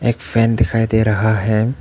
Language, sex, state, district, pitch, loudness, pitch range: Hindi, male, Arunachal Pradesh, Papum Pare, 110 Hz, -16 LUFS, 110-115 Hz